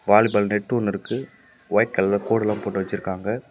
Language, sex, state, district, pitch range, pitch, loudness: Tamil, male, Tamil Nadu, Namakkal, 100-110 Hz, 105 Hz, -23 LUFS